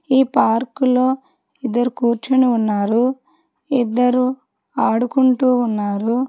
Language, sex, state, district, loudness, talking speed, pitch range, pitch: Telugu, female, Telangana, Hyderabad, -18 LUFS, 75 wpm, 235-265 Hz, 255 Hz